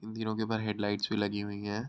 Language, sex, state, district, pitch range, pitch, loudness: Hindi, male, Uttar Pradesh, Hamirpur, 105-110 Hz, 105 Hz, -33 LUFS